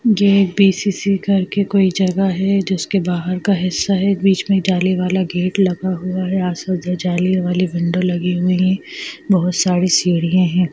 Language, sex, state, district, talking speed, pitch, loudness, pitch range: Hindi, female, Bihar, Gaya, 160 wpm, 185 Hz, -17 LUFS, 180-195 Hz